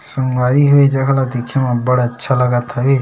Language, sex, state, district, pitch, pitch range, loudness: Chhattisgarhi, male, Chhattisgarh, Sarguja, 130 Hz, 125-135 Hz, -15 LUFS